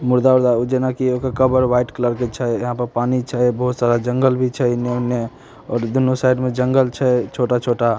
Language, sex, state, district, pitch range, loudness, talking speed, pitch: Maithili, male, Bihar, Samastipur, 120-130 Hz, -18 LUFS, 210 wpm, 125 Hz